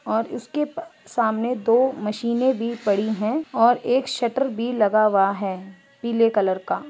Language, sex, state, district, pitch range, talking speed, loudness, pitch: Hindi, female, Chhattisgarh, Bastar, 210-255 Hz, 150 wpm, -22 LUFS, 230 Hz